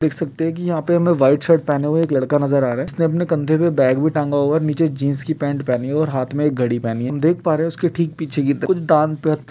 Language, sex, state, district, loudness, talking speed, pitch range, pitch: Hindi, male, Uttarakhand, Uttarkashi, -18 LUFS, 345 wpm, 140-165 Hz, 155 Hz